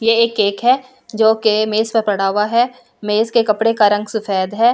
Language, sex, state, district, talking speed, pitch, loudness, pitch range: Hindi, female, Delhi, New Delhi, 240 wpm, 220 Hz, -16 LUFS, 210-230 Hz